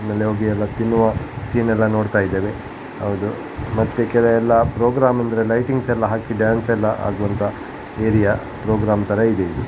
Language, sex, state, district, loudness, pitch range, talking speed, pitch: Kannada, male, Karnataka, Dakshina Kannada, -19 LUFS, 105-115 Hz, 150 wpm, 110 Hz